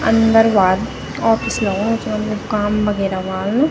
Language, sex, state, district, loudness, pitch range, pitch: Garhwali, female, Uttarakhand, Tehri Garhwal, -17 LUFS, 195-225 Hz, 215 Hz